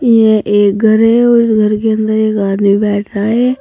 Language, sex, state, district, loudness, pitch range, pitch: Hindi, female, Uttar Pradesh, Saharanpur, -11 LUFS, 205-225 Hz, 215 Hz